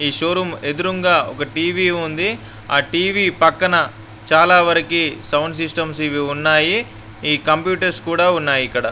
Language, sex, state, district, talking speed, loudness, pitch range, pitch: Telugu, male, Andhra Pradesh, Guntur, 135 wpm, -17 LUFS, 145-175 Hz, 160 Hz